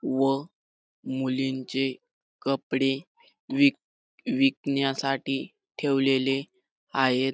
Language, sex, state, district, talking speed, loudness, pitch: Marathi, male, Maharashtra, Dhule, 55 wpm, -27 LUFS, 135 Hz